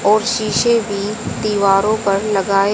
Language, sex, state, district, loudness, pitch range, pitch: Hindi, female, Haryana, Jhajjar, -16 LUFS, 200-215 Hz, 210 Hz